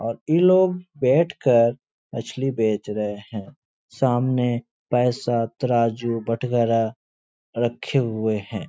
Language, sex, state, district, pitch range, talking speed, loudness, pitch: Hindi, male, Uttar Pradesh, Etah, 110-130 Hz, 110 wpm, -22 LUFS, 120 Hz